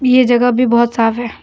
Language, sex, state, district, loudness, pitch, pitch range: Hindi, female, Jharkhand, Deoghar, -13 LUFS, 240 Hz, 235-250 Hz